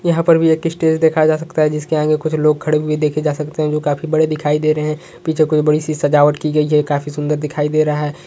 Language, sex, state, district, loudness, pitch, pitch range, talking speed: Hindi, male, Chhattisgarh, Sukma, -16 LUFS, 155 Hz, 150-155 Hz, 285 wpm